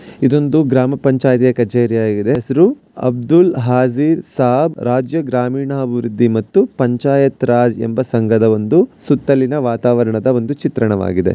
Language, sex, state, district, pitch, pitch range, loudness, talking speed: Kannada, male, Karnataka, Mysore, 125 Hz, 120-140 Hz, -14 LUFS, 105 wpm